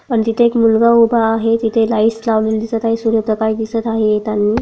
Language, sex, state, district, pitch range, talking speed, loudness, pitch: Marathi, female, Maharashtra, Sindhudurg, 220-230 Hz, 195 wpm, -15 LUFS, 225 Hz